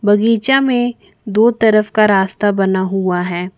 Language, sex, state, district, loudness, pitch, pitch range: Hindi, female, Jharkhand, Ranchi, -14 LUFS, 210 Hz, 190-225 Hz